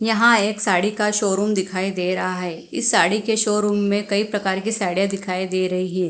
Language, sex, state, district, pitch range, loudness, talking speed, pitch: Hindi, female, Bihar, Katihar, 185-210 Hz, -20 LUFS, 215 wpm, 195 Hz